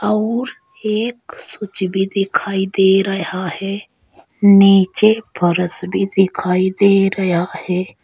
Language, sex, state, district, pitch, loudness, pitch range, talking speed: Hindi, female, Uttar Pradesh, Saharanpur, 195 Hz, -16 LUFS, 185-210 Hz, 110 wpm